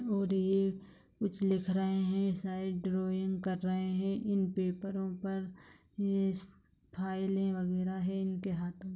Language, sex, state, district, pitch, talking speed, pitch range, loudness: Hindi, female, Bihar, Gopalganj, 190 Hz, 140 wpm, 185-195 Hz, -34 LUFS